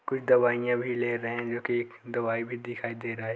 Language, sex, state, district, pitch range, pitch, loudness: Hindi, male, Chhattisgarh, Korba, 115-120 Hz, 120 Hz, -29 LUFS